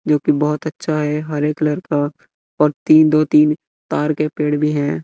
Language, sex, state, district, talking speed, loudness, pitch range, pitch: Hindi, male, Bihar, West Champaran, 200 wpm, -17 LUFS, 150-155 Hz, 150 Hz